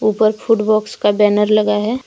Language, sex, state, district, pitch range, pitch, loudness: Hindi, female, Jharkhand, Deoghar, 210-215 Hz, 215 Hz, -15 LUFS